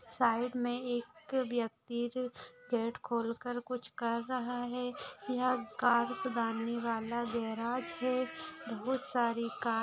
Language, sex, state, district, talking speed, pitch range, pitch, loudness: Hindi, female, Maharashtra, Dhule, 135 wpm, 235-250 Hz, 245 Hz, -35 LUFS